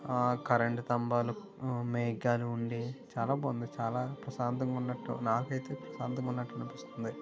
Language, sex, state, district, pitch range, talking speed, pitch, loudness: Telugu, male, Andhra Pradesh, Visakhapatnam, 120-130 Hz, 115 wpm, 120 Hz, -35 LUFS